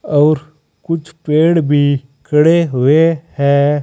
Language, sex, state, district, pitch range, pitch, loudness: Hindi, male, Uttar Pradesh, Saharanpur, 140-160 Hz, 150 Hz, -14 LUFS